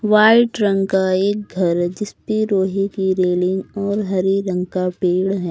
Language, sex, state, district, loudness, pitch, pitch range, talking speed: Hindi, female, Uttar Pradesh, Lucknow, -18 LUFS, 195 Hz, 185-205 Hz, 175 wpm